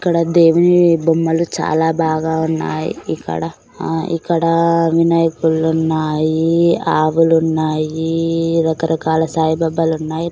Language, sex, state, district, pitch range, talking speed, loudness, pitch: Telugu, female, Telangana, Karimnagar, 160-165 Hz, 95 wpm, -15 LUFS, 165 Hz